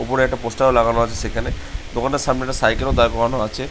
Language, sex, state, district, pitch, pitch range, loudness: Bengali, male, West Bengal, Jhargram, 115 Hz, 115-130 Hz, -19 LUFS